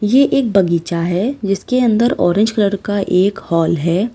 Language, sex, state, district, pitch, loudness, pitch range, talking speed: Hindi, female, Uttar Pradesh, Lalitpur, 200 Hz, -15 LUFS, 175-230 Hz, 175 wpm